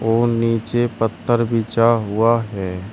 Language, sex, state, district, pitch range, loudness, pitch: Hindi, male, Uttar Pradesh, Shamli, 110-115 Hz, -18 LUFS, 115 Hz